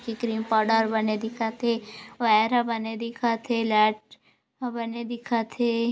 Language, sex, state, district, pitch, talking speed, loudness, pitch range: Hindi, female, Chhattisgarh, Korba, 230 Hz, 150 wpm, -25 LUFS, 220-235 Hz